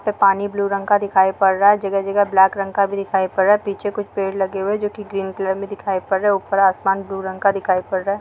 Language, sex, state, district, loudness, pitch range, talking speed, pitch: Hindi, female, Bihar, Sitamarhi, -19 LUFS, 195-200 Hz, 305 wpm, 195 Hz